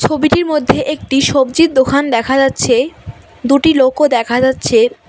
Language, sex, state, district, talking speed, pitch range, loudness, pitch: Bengali, female, West Bengal, Cooch Behar, 130 wpm, 260-305 Hz, -12 LUFS, 275 Hz